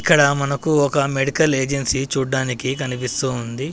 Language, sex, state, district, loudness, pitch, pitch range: Telugu, male, Telangana, Adilabad, -19 LUFS, 135 Hz, 130-140 Hz